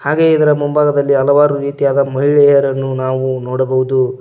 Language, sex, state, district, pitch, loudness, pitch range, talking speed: Kannada, male, Karnataka, Koppal, 140 Hz, -13 LUFS, 130-145 Hz, 115 wpm